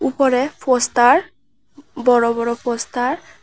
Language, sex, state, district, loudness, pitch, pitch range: Bengali, female, Tripura, West Tripura, -17 LUFS, 250 Hz, 240-275 Hz